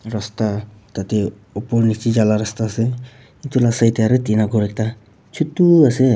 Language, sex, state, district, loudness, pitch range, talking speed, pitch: Nagamese, male, Nagaland, Kohima, -18 LUFS, 105-125 Hz, 175 wpm, 110 Hz